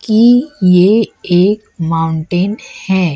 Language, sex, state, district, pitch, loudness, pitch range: Hindi, female, Chhattisgarh, Raipur, 185 Hz, -12 LUFS, 175-215 Hz